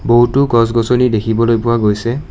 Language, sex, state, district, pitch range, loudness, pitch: Assamese, male, Assam, Kamrup Metropolitan, 115-120 Hz, -13 LUFS, 115 Hz